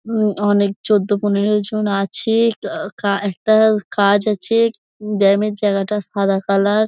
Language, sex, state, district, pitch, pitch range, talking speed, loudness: Bengali, female, West Bengal, Dakshin Dinajpur, 205 Hz, 200-215 Hz, 155 wpm, -17 LUFS